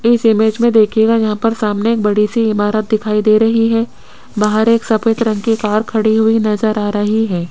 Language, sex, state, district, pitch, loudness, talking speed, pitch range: Hindi, female, Rajasthan, Jaipur, 220 Hz, -14 LUFS, 215 wpm, 210-225 Hz